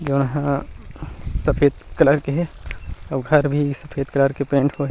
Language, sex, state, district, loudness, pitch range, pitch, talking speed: Chhattisgarhi, male, Chhattisgarh, Rajnandgaon, -20 LUFS, 140-145 Hz, 140 Hz, 160 wpm